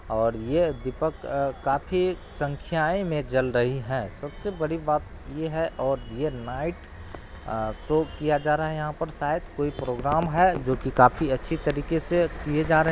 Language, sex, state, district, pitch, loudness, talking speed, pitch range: Hindi, male, Bihar, Araria, 145 Hz, -26 LUFS, 185 wpm, 130-160 Hz